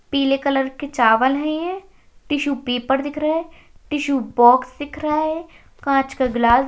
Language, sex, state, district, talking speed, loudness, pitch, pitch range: Hindi, female, Rajasthan, Nagaur, 160 wpm, -19 LUFS, 280 Hz, 260-305 Hz